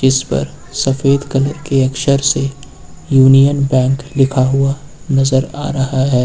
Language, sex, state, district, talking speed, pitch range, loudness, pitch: Hindi, male, Uttar Pradesh, Lucknow, 155 wpm, 130-140 Hz, -14 LUFS, 135 Hz